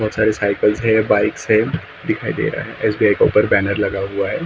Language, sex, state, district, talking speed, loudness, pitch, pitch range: Hindi, male, Maharashtra, Mumbai Suburban, 240 wpm, -17 LUFS, 105 Hz, 100-110 Hz